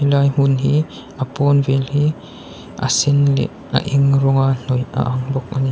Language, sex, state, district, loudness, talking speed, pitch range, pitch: Mizo, male, Mizoram, Aizawl, -17 LUFS, 210 wpm, 135-140 Hz, 135 Hz